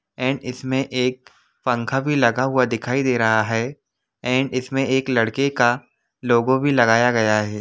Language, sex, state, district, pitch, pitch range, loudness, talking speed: Hindi, male, Jharkhand, Jamtara, 125 Hz, 115-130 Hz, -20 LUFS, 165 wpm